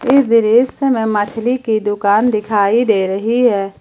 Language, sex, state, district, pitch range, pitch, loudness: Hindi, female, Jharkhand, Ranchi, 205-245 Hz, 225 Hz, -14 LUFS